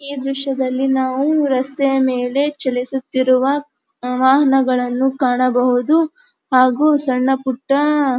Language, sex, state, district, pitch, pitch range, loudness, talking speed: Kannada, female, Karnataka, Dharwad, 265 Hz, 255-280 Hz, -17 LUFS, 75 wpm